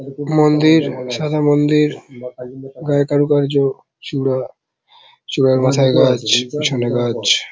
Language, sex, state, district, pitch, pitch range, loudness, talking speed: Bengali, male, West Bengal, Paschim Medinipur, 140 Hz, 130-150 Hz, -16 LUFS, 95 wpm